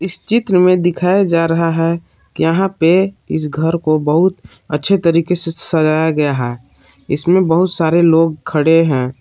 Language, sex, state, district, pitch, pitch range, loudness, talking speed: Hindi, male, Jharkhand, Palamu, 165 Hz, 155-180 Hz, -14 LUFS, 165 wpm